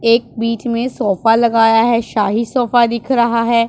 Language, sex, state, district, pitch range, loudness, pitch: Hindi, female, Punjab, Pathankot, 225-235 Hz, -14 LUFS, 230 Hz